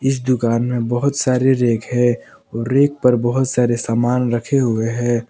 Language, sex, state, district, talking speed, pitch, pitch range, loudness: Hindi, male, Jharkhand, Palamu, 180 wpm, 120 Hz, 120-130 Hz, -17 LUFS